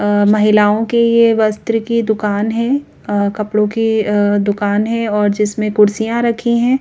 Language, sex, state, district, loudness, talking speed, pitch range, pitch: Hindi, female, Madhya Pradesh, Bhopal, -14 LUFS, 160 wpm, 210-230 Hz, 215 Hz